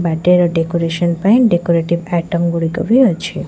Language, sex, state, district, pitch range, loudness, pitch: Odia, female, Odisha, Khordha, 165-180 Hz, -14 LUFS, 170 Hz